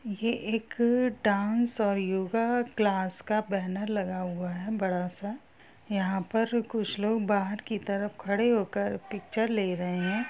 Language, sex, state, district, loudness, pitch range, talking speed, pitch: Hindi, female, Bihar, Darbhanga, -29 LUFS, 190-225 Hz, 155 wpm, 205 Hz